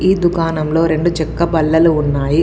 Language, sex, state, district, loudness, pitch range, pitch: Telugu, female, Telangana, Komaram Bheem, -15 LUFS, 155-170 Hz, 160 Hz